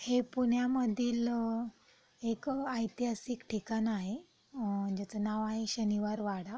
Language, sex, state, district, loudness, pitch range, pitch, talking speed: Marathi, female, Maharashtra, Pune, -35 LUFS, 215-245 Hz, 230 Hz, 110 wpm